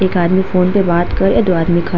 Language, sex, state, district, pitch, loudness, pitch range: Hindi, female, Uttar Pradesh, Hamirpur, 180 Hz, -14 LUFS, 170-190 Hz